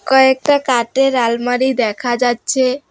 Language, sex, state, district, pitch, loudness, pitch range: Bengali, female, West Bengal, Alipurduar, 255 Hz, -15 LUFS, 240-265 Hz